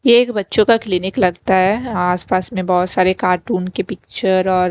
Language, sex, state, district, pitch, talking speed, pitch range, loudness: Hindi, female, Himachal Pradesh, Shimla, 185 Hz, 190 wpm, 180-205 Hz, -16 LUFS